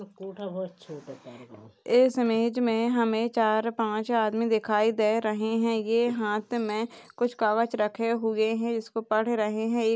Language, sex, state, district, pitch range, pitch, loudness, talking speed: Hindi, female, Goa, North and South Goa, 215-230 Hz, 225 Hz, -26 LUFS, 140 wpm